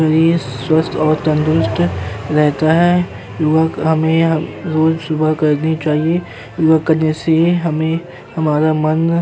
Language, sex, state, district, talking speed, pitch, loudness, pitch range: Hindi, male, Uttar Pradesh, Jyotiba Phule Nagar, 115 wpm, 160 Hz, -15 LUFS, 155-160 Hz